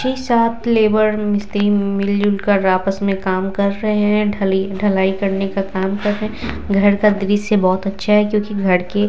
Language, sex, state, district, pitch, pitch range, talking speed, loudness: Hindi, female, Bihar, Vaishali, 205 Hz, 195-210 Hz, 190 wpm, -17 LUFS